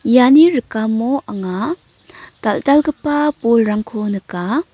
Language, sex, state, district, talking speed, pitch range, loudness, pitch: Garo, female, Meghalaya, North Garo Hills, 75 wpm, 215-295 Hz, -16 LUFS, 245 Hz